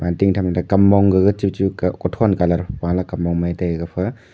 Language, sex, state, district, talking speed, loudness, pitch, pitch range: Wancho, male, Arunachal Pradesh, Longding, 205 wpm, -18 LUFS, 90 Hz, 85-100 Hz